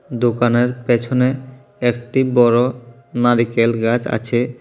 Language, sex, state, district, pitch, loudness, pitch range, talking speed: Bengali, male, Tripura, South Tripura, 120 Hz, -17 LUFS, 120-125 Hz, 90 wpm